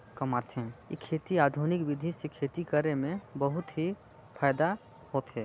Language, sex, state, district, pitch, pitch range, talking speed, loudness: Chhattisgarhi, male, Chhattisgarh, Sarguja, 150 Hz, 135-165 Hz, 145 wpm, -32 LUFS